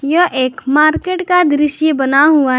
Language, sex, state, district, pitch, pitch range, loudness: Hindi, female, Jharkhand, Garhwa, 300 Hz, 275-320 Hz, -12 LUFS